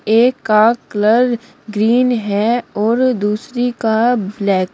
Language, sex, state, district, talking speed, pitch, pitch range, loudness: Hindi, female, Uttar Pradesh, Shamli, 125 wpm, 225 Hz, 210-245 Hz, -15 LUFS